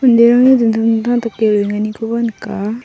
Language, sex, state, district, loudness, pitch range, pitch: Garo, female, Meghalaya, South Garo Hills, -14 LUFS, 215-235 Hz, 225 Hz